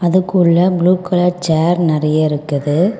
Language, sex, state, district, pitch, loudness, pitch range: Tamil, female, Tamil Nadu, Kanyakumari, 175 Hz, -14 LUFS, 155-180 Hz